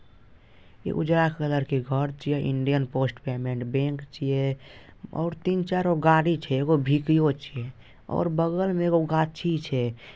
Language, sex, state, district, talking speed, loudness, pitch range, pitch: Maithili, male, Bihar, Madhepura, 150 wpm, -26 LUFS, 130-160 Hz, 145 Hz